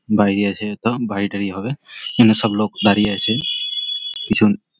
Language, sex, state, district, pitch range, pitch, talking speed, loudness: Bengali, male, West Bengal, Malda, 100-145 Hz, 110 Hz, 160 wpm, -18 LUFS